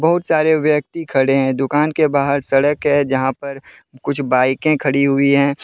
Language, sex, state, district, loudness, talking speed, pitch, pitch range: Hindi, male, Jharkhand, Deoghar, -16 LUFS, 170 wpm, 140 Hz, 135-150 Hz